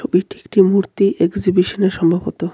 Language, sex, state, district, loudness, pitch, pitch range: Bengali, male, West Bengal, Cooch Behar, -16 LUFS, 185 Hz, 180-195 Hz